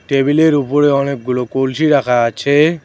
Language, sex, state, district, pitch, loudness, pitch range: Bengali, male, West Bengal, Cooch Behar, 140 Hz, -14 LUFS, 130-145 Hz